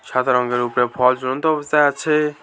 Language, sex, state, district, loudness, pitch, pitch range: Bengali, male, West Bengal, Alipurduar, -18 LUFS, 130 Hz, 125-150 Hz